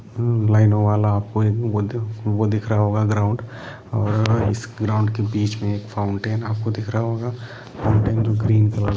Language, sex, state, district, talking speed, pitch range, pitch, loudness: Hindi, male, Jharkhand, Jamtara, 165 wpm, 105-115 Hz, 110 Hz, -21 LUFS